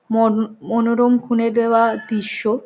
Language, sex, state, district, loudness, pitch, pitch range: Bengali, female, West Bengal, Dakshin Dinajpur, -18 LUFS, 230 Hz, 220-235 Hz